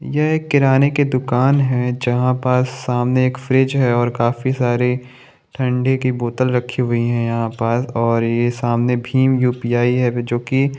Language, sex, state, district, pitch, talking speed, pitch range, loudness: Hindi, male, Maharashtra, Chandrapur, 125 Hz, 170 wpm, 120-130 Hz, -17 LUFS